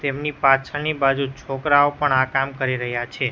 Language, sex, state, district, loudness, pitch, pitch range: Gujarati, male, Gujarat, Gandhinagar, -20 LUFS, 135 Hz, 130-145 Hz